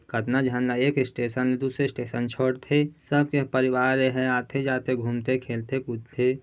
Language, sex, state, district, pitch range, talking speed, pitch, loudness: Chhattisgarhi, male, Chhattisgarh, Raigarh, 125-135 Hz, 170 wpm, 130 Hz, -25 LUFS